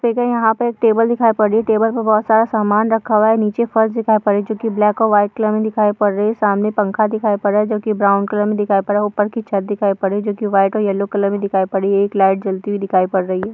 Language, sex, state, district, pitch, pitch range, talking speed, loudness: Hindi, female, Bihar, Darbhanga, 210 Hz, 200-220 Hz, 330 wpm, -16 LUFS